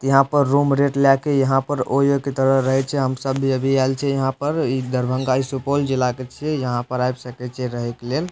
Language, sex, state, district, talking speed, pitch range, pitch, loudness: Maithili, male, Bihar, Supaul, 260 wpm, 130-140 Hz, 135 Hz, -20 LUFS